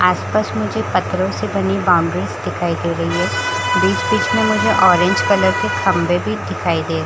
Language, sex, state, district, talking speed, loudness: Hindi, female, Chhattisgarh, Bilaspur, 195 wpm, -17 LUFS